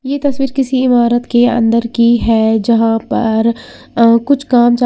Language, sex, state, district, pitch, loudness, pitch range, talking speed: Hindi, female, Uttar Pradesh, Lalitpur, 240 Hz, -12 LUFS, 230-255 Hz, 160 wpm